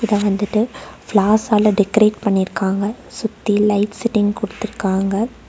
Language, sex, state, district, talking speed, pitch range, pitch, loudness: Tamil, female, Tamil Nadu, Nilgiris, 110 wpm, 200-215 Hz, 210 Hz, -18 LUFS